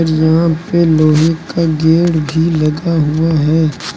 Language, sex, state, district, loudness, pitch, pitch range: Hindi, male, Uttar Pradesh, Lucknow, -13 LUFS, 160 Hz, 155-165 Hz